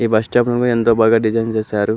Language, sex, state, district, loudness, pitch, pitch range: Telugu, male, Andhra Pradesh, Anantapur, -16 LUFS, 115 Hz, 110-115 Hz